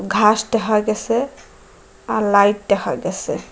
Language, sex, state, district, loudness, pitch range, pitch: Bengali, female, Assam, Hailakandi, -18 LUFS, 210-230 Hz, 215 Hz